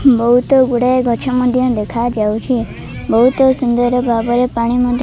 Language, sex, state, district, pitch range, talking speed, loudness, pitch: Odia, female, Odisha, Malkangiri, 235-255 Hz, 130 wpm, -14 LUFS, 245 Hz